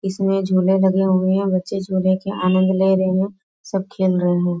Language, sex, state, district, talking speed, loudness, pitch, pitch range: Hindi, female, Bihar, Muzaffarpur, 220 wpm, -19 LUFS, 190 Hz, 185-195 Hz